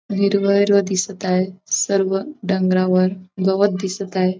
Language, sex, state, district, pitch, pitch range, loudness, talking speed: Marathi, female, Maharashtra, Dhule, 190 Hz, 185-200 Hz, -19 LUFS, 125 wpm